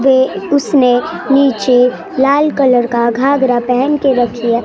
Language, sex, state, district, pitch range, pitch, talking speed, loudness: Hindi, female, Maharashtra, Gondia, 245-280 Hz, 260 Hz, 130 wpm, -12 LUFS